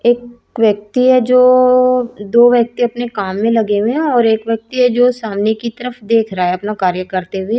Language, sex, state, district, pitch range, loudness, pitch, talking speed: Hindi, female, Chhattisgarh, Raipur, 210-245 Hz, -14 LUFS, 230 Hz, 205 wpm